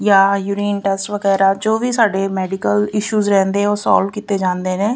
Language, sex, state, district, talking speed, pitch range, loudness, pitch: Punjabi, female, Punjab, Fazilka, 195 wpm, 195-205 Hz, -16 LUFS, 200 Hz